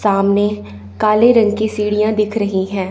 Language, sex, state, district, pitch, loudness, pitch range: Hindi, female, Chandigarh, Chandigarh, 210 Hz, -15 LUFS, 195-215 Hz